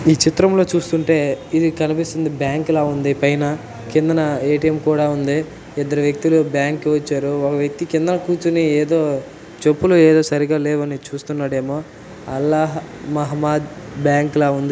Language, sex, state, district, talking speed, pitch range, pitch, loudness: Telugu, male, Telangana, Nalgonda, 145 wpm, 145-160 Hz, 150 Hz, -18 LUFS